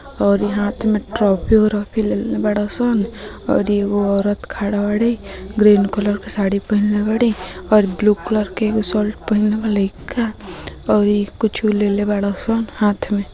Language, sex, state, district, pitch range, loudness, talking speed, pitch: Bhojpuri, female, Bihar, Gopalganj, 205-215 Hz, -18 LUFS, 150 wpm, 210 Hz